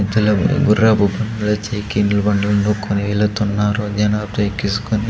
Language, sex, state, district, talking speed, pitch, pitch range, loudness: Telugu, male, Andhra Pradesh, Sri Satya Sai, 105 wpm, 105 Hz, 100-105 Hz, -17 LUFS